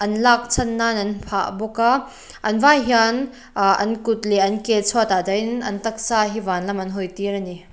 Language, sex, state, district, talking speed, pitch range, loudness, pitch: Mizo, female, Mizoram, Aizawl, 225 wpm, 200-235 Hz, -20 LUFS, 220 Hz